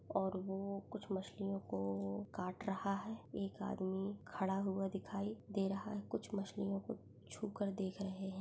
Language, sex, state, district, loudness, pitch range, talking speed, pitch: Hindi, female, Chhattisgarh, Kabirdham, -42 LUFS, 190-200 Hz, 170 wpm, 195 Hz